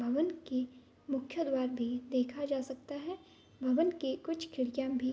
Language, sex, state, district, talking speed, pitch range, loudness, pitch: Hindi, female, Bihar, Bhagalpur, 165 wpm, 255-320 Hz, -36 LUFS, 270 Hz